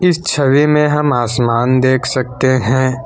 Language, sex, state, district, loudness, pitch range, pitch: Hindi, male, Assam, Kamrup Metropolitan, -13 LUFS, 130-150 Hz, 130 Hz